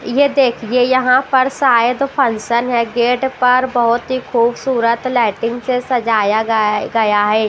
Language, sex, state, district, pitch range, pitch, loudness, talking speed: Hindi, female, Maharashtra, Washim, 230-255 Hz, 240 Hz, -15 LUFS, 135 wpm